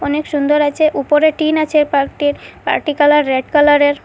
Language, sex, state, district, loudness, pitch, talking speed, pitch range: Bengali, female, Assam, Hailakandi, -14 LUFS, 295 Hz, 205 wpm, 290-305 Hz